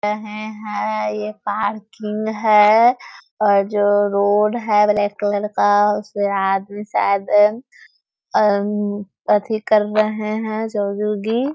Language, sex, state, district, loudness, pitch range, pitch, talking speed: Hindi, female, Bihar, Muzaffarpur, -18 LUFS, 205-215 Hz, 210 Hz, 105 wpm